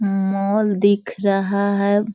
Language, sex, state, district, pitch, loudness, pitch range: Hindi, female, Bihar, Sitamarhi, 200 Hz, -19 LUFS, 195-205 Hz